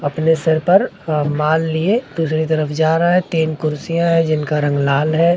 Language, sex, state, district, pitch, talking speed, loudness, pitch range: Hindi, male, Maharashtra, Mumbai Suburban, 160 Hz, 200 wpm, -17 LUFS, 155-170 Hz